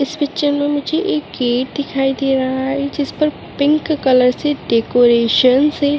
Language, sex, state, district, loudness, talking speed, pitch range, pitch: Hindi, female, Uttarakhand, Uttarkashi, -16 LUFS, 170 wpm, 260-295 Hz, 280 Hz